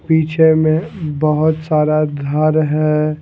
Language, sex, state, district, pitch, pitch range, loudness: Hindi, male, Punjab, Fazilka, 155 Hz, 150-160 Hz, -15 LUFS